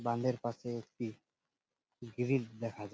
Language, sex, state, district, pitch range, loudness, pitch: Bengali, male, West Bengal, Purulia, 115-125 Hz, -38 LUFS, 120 Hz